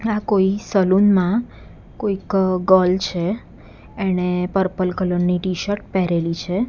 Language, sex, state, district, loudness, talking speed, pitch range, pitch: Gujarati, female, Gujarat, Gandhinagar, -19 LUFS, 125 wpm, 180-200 Hz, 185 Hz